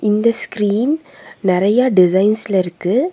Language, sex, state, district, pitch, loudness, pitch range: Tamil, female, Tamil Nadu, Nilgiris, 210 Hz, -16 LUFS, 190-250 Hz